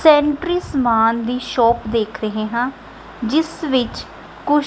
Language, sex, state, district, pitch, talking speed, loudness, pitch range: Punjabi, female, Punjab, Kapurthala, 250 Hz, 130 wpm, -19 LUFS, 230-295 Hz